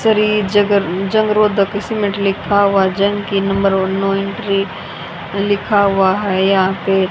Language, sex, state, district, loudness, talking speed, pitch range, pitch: Hindi, female, Haryana, Jhajjar, -15 LUFS, 150 wpm, 195-205 Hz, 200 Hz